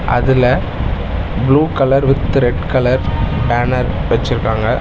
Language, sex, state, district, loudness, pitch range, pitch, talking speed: Tamil, male, Tamil Nadu, Chennai, -15 LUFS, 105-130 Hz, 120 Hz, 100 wpm